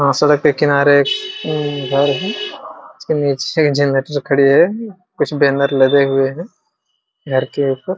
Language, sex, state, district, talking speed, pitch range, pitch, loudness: Hindi, male, Jharkhand, Jamtara, 145 wpm, 140-155 Hz, 145 Hz, -15 LUFS